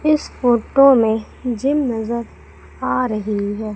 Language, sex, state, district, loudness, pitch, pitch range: Hindi, female, Madhya Pradesh, Umaria, -18 LUFS, 235 Hz, 220-270 Hz